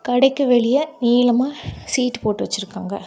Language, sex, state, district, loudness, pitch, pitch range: Tamil, female, Tamil Nadu, Kanyakumari, -19 LUFS, 245 Hz, 225-265 Hz